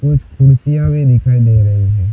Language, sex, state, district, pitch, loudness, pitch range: Hindi, male, Gujarat, Gandhinagar, 125 Hz, -12 LUFS, 105-145 Hz